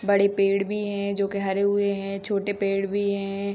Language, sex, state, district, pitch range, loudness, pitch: Hindi, female, Jharkhand, Sahebganj, 195-200 Hz, -25 LUFS, 200 Hz